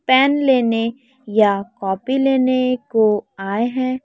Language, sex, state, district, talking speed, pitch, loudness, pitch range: Hindi, female, Chhattisgarh, Raipur, 120 wpm, 250 Hz, -18 LUFS, 215-260 Hz